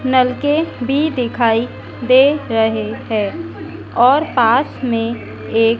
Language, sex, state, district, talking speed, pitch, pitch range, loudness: Hindi, female, Madhya Pradesh, Dhar, 105 wpm, 240 Hz, 225-260 Hz, -16 LUFS